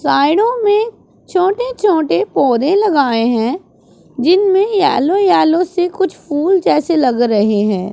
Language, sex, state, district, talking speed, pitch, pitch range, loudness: Hindi, male, Punjab, Pathankot, 130 wpm, 345 Hz, 260-395 Hz, -14 LUFS